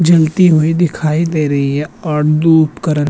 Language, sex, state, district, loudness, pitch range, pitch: Hindi, male, Uttarakhand, Tehri Garhwal, -13 LUFS, 150-165 Hz, 155 Hz